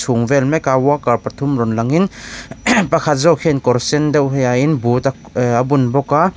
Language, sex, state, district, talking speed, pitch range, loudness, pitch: Mizo, male, Mizoram, Aizawl, 205 wpm, 125-150 Hz, -15 LUFS, 140 Hz